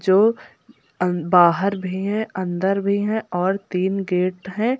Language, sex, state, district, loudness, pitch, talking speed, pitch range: Hindi, female, Uttar Pradesh, Lucknow, -21 LUFS, 190 Hz, 150 wpm, 180-205 Hz